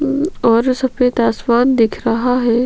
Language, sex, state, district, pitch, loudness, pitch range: Hindi, female, Chhattisgarh, Sukma, 245 Hz, -15 LUFS, 230-255 Hz